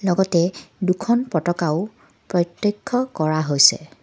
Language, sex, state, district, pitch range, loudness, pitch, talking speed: Assamese, female, Assam, Kamrup Metropolitan, 160-205 Hz, -20 LUFS, 180 Hz, 90 wpm